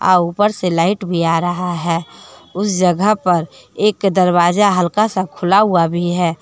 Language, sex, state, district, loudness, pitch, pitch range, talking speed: Hindi, female, Jharkhand, Deoghar, -15 LUFS, 180 Hz, 175-200 Hz, 175 wpm